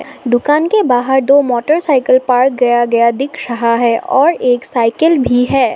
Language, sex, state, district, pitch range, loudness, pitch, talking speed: Hindi, female, Assam, Sonitpur, 240-275 Hz, -12 LUFS, 250 Hz, 165 wpm